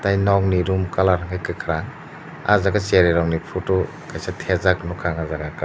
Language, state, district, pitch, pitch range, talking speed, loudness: Kokborok, Tripura, Dhalai, 95 Hz, 85-100 Hz, 190 wpm, -21 LUFS